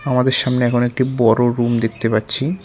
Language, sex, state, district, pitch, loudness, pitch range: Bengali, male, West Bengal, Cooch Behar, 120 Hz, -17 LUFS, 115-130 Hz